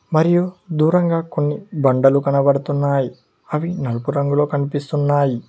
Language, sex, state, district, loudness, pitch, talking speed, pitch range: Telugu, male, Telangana, Mahabubabad, -18 LUFS, 145 Hz, 100 wpm, 140-160 Hz